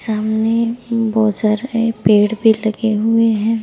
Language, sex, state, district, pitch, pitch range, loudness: Hindi, male, Maharashtra, Nagpur, 220 Hz, 215-230 Hz, -16 LUFS